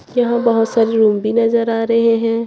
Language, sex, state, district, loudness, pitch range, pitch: Hindi, female, Chhattisgarh, Raipur, -15 LUFS, 225-230 Hz, 230 Hz